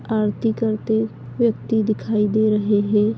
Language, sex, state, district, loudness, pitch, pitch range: Hindi, female, Uttar Pradesh, Deoria, -20 LUFS, 215 Hz, 210-220 Hz